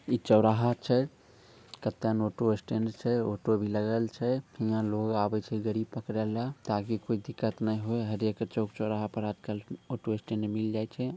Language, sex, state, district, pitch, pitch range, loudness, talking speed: Maithili, male, Bihar, Sitamarhi, 110 Hz, 110-115 Hz, -31 LUFS, 195 wpm